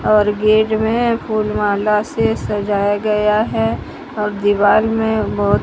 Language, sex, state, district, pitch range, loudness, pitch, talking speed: Hindi, female, Odisha, Sambalpur, 205-220 Hz, -16 LUFS, 210 Hz, 140 wpm